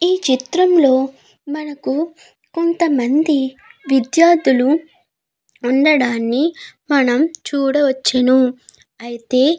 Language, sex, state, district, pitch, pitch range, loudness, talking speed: Telugu, female, Andhra Pradesh, Guntur, 280 Hz, 260-325 Hz, -16 LUFS, 65 wpm